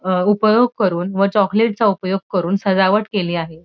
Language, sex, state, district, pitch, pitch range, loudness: Marathi, female, Maharashtra, Dhule, 195 Hz, 185-210 Hz, -17 LUFS